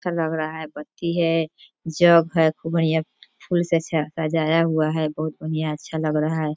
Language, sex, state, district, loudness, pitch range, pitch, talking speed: Hindi, female, Bihar, East Champaran, -22 LUFS, 155-165 Hz, 160 Hz, 190 wpm